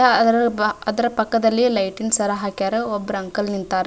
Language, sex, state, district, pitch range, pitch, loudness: Kannada, female, Karnataka, Dharwad, 205-230 Hz, 215 Hz, -20 LUFS